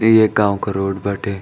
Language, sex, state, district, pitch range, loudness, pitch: Bhojpuri, male, Uttar Pradesh, Gorakhpur, 100-110 Hz, -17 LUFS, 100 Hz